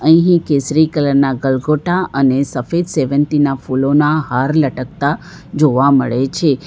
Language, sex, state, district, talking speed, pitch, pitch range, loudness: Gujarati, female, Gujarat, Valsad, 125 wpm, 145 Hz, 135-155 Hz, -15 LUFS